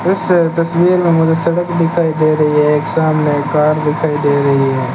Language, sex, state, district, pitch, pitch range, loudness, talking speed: Hindi, male, Rajasthan, Bikaner, 155 Hz, 150-170 Hz, -13 LUFS, 180 wpm